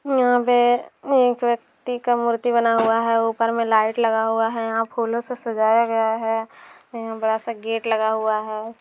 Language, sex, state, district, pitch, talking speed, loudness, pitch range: Hindi, female, Bihar, Saran, 230 Hz, 190 wpm, -21 LUFS, 225-240 Hz